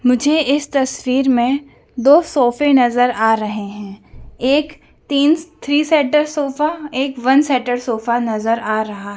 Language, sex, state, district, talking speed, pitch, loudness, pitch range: Hindi, female, Madhya Pradesh, Dhar, 145 wpm, 265 Hz, -16 LUFS, 235-290 Hz